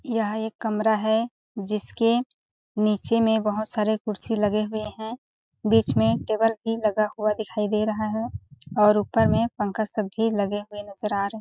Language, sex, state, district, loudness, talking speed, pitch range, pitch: Hindi, female, Chhattisgarh, Balrampur, -24 LUFS, 185 wpm, 210-220 Hz, 215 Hz